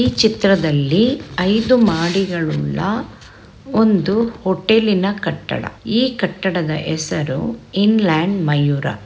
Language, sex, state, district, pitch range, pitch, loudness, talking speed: Kannada, female, Karnataka, Dakshina Kannada, 160-215 Hz, 190 Hz, -17 LUFS, 80 wpm